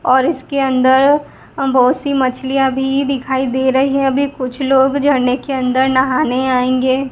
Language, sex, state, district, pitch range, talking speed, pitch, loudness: Hindi, female, Gujarat, Gandhinagar, 260-275 Hz, 150 wpm, 265 Hz, -15 LUFS